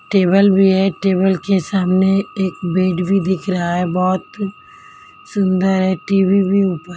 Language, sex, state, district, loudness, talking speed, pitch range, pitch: Hindi, female, Maharashtra, Mumbai Suburban, -16 LUFS, 155 wpm, 185-200 Hz, 190 Hz